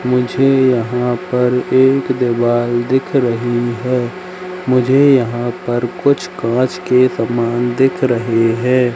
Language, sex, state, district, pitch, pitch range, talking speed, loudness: Hindi, male, Madhya Pradesh, Katni, 125 Hz, 120-130 Hz, 120 wpm, -15 LUFS